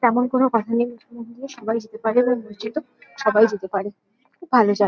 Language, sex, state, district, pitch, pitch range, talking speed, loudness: Bengali, female, West Bengal, Kolkata, 230 Hz, 215-245 Hz, 195 wpm, -21 LUFS